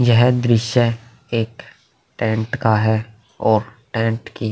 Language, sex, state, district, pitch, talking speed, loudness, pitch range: Hindi, male, Uttar Pradesh, Hamirpur, 115 Hz, 120 wpm, -19 LUFS, 110-120 Hz